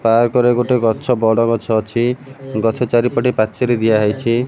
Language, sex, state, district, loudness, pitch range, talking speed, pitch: Odia, male, Odisha, Malkangiri, -16 LUFS, 110-125 Hz, 145 wpm, 120 Hz